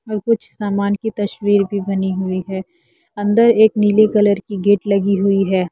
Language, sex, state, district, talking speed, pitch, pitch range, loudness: Hindi, female, Jharkhand, Deoghar, 190 wpm, 205 Hz, 195-215 Hz, -16 LUFS